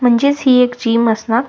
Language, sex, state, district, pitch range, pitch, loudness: Marathi, female, Maharashtra, Solapur, 230-255 Hz, 245 Hz, -13 LUFS